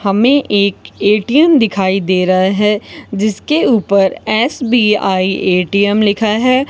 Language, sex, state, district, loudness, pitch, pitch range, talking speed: Hindi, female, Rajasthan, Bikaner, -13 LUFS, 210 Hz, 195-235 Hz, 115 wpm